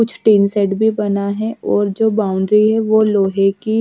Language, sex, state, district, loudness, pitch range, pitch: Hindi, female, Haryana, Charkhi Dadri, -15 LUFS, 200-220 Hz, 210 Hz